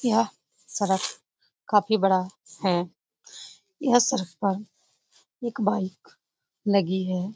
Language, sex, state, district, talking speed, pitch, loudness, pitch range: Hindi, female, Bihar, Lakhisarai, 105 wpm, 200 Hz, -26 LUFS, 185-225 Hz